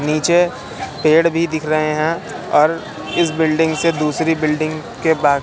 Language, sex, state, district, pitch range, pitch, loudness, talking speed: Hindi, male, Madhya Pradesh, Katni, 155-165 Hz, 155 Hz, -17 LUFS, 155 wpm